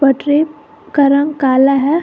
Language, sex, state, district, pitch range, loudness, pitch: Hindi, female, Jharkhand, Garhwa, 275-300 Hz, -13 LUFS, 290 Hz